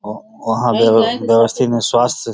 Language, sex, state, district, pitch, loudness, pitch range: Hindi, male, Bihar, Darbhanga, 115 Hz, -14 LUFS, 115-120 Hz